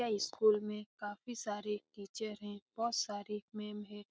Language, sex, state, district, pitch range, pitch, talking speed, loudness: Hindi, female, Bihar, Lakhisarai, 205-220 Hz, 210 Hz, 190 wpm, -39 LUFS